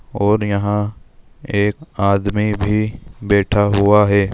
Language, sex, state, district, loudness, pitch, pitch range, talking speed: Hindi, male, Andhra Pradesh, Chittoor, -17 LUFS, 105 Hz, 100-105 Hz, 110 wpm